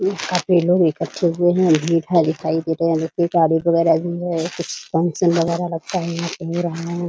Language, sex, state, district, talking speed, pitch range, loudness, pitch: Hindi, female, Bihar, Muzaffarpur, 230 wpm, 165-175 Hz, -19 LUFS, 170 Hz